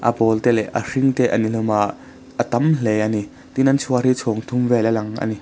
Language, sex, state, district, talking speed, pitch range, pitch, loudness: Mizo, male, Mizoram, Aizawl, 265 wpm, 110-125 Hz, 115 Hz, -19 LUFS